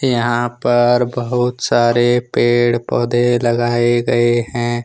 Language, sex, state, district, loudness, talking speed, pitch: Hindi, male, Jharkhand, Ranchi, -15 LUFS, 110 wpm, 120 Hz